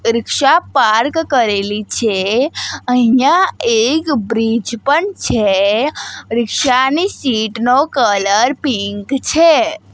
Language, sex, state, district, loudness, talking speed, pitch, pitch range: Gujarati, female, Gujarat, Gandhinagar, -14 LUFS, 95 wpm, 250 Hz, 220-295 Hz